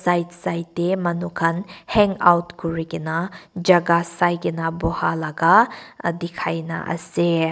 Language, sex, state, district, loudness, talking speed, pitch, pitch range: Nagamese, female, Nagaland, Kohima, -21 LUFS, 105 wpm, 170 Hz, 165-175 Hz